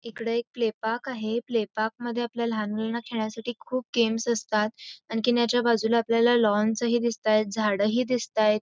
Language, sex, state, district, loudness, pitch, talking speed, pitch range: Marathi, female, Karnataka, Belgaum, -26 LUFS, 230 Hz, 160 wpm, 220-240 Hz